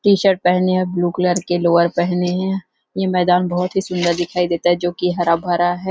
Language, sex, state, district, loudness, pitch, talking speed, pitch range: Hindi, female, Chhattisgarh, Rajnandgaon, -18 LUFS, 180 Hz, 235 wpm, 175-185 Hz